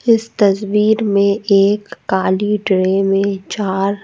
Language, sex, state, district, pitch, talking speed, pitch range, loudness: Hindi, female, Madhya Pradesh, Bhopal, 200 Hz, 120 wpm, 195-210 Hz, -15 LUFS